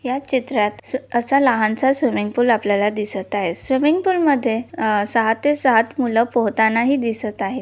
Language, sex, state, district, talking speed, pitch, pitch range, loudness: Marathi, female, Maharashtra, Solapur, 165 wpm, 235 Hz, 215-265 Hz, -19 LUFS